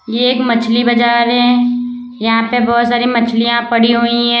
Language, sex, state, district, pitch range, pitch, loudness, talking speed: Hindi, female, Uttar Pradesh, Lalitpur, 235-245 Hz, 235 Hz, -12 LUFS, 175 wpm